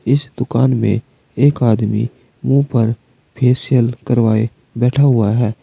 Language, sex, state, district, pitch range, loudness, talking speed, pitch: Hindi, male, Uttar Pradesh, Saharanpur, 115-130 Hz, -16 LUFS, 115 wpm, 120 Hz